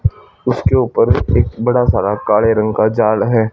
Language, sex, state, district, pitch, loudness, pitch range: Hindi, male, Haryana, Charkhi Dadri, 110 Hz, -14 LUFS, 105-115 Hz